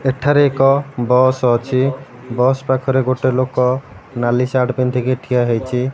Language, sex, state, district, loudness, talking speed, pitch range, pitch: Odia, male, Odisha, Malkangiri, -16 LUFS, 130 wpm, 125-130 Hz, 130 Hz